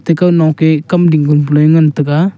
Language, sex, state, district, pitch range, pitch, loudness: Wancho, male, Arunachal Pradesh, Longding, 150-170 Hz, 155 Hz, -10 LUFS